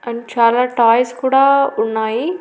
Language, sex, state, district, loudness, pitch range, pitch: Telugu, female, Andhra Pradesh, Annamaya, -15 LUFS, 230-265 Hz, 240 Hz